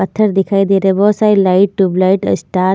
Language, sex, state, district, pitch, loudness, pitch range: Hindi, female, Maharashtra, Gondia, 195 Hz, -12 LUFS, 190-200 Hz